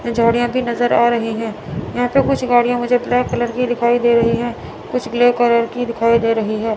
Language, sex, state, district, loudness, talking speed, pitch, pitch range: Hindi, female, Chandigarh, Chandigarh, -17 LUFS, 230 wpm, 240 Hz, 230-245 Hz